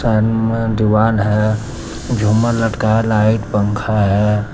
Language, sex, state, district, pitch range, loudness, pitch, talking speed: Hindi, male, Jharkhand, Deoghar, 105-115 Hz, -15 LUFS, 110 Hz, 105 wpm